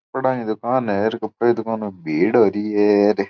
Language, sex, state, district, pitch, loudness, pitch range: Marwari, male, Rajasthan, Churu, 110 Hz, -19 LUFS, 105-120 Hz